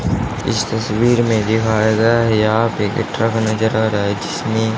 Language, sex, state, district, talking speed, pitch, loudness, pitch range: Hindi, male, Haryana, Charkhi Dadri, 190 wpm, 110 Hz, -17 LUFS, 110-115 Hz